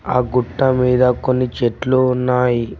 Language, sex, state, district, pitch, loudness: Telugu, male, Telangana, Mahabubabad, 125 Hz, -17 LUFS